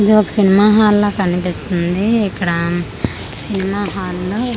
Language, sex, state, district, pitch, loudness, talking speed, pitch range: Telugu, female, Andhra Pradesh, Manyam, 195 Hz, -16 LUFS, 145 wpm, 175-210 Hz